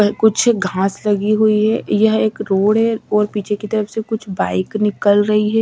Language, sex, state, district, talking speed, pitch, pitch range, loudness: Hindi, female, Bihar, Katihar, 215 wpm, 210 Hz, 205-220 Hz, -16 LUFS